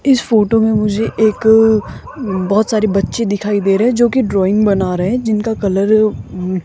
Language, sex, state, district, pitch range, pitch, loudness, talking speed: Hindi, female, Rajasthan, Jaipur, 195-225 Hz, 215 Hz, -14 LUFS, 180 wpm